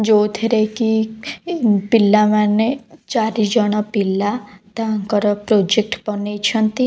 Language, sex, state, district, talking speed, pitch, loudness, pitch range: Odia, female, Odisha, Khordha, 70 wpm, 215 Hz, -17 LUFS, 205-225 Hz